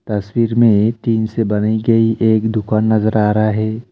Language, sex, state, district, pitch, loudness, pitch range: Hindi, male, West Bengal, Alipurduar, 110 Hz, -15 LUFS, 110-115 Hz